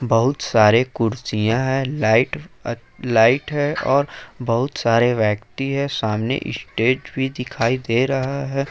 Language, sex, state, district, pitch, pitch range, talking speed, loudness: Hindi, male, Jharkhand, Ranchi, 125 Hz, 115-135 Hz, 130 wpm, -20 LUFS